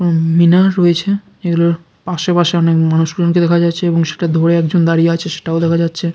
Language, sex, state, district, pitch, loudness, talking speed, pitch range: Bengali, male, West Bengal, Jalpaiguri, 170 Hz, -14 LUFS, 175 wpm, 165-175 Hz